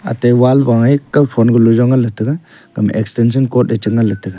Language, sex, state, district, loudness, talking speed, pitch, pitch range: Wancho, male, Arunachal Pradesh, Longding, -13 LUFS, 165 wpm, 120 Hz, 115-130 Hz